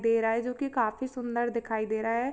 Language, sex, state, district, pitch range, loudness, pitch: Hindi, female, Jharkhand, Sahebganj, 225-250 Hz, -30 LUFS, 235 Hz